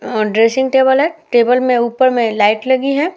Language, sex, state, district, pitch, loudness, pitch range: Hindi, female, Uttar Pradesh, Hamirpur, 255 Hz, -13 LUFS, 230-265 Hz